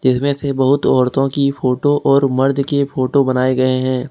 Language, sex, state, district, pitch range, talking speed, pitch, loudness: Hindi, male, Jharkhand, Ranchi, 130-140 Hz, 190 wpm, 135 Hz, -15 LUFS